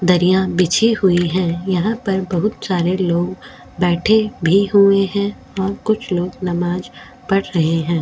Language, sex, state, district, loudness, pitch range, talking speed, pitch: Hindi, female, Goa, North and South Goa, -17 LUFS, 175-200 Hz, 150 wpm, 185 Hz